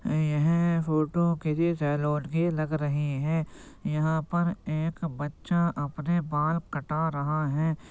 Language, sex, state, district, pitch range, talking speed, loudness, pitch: Hindi, male, Uttar Pradesh, Jyotiba Phule Nagar, 150-170 Hz, 130 wpm, -28 LUFS, 155 Hz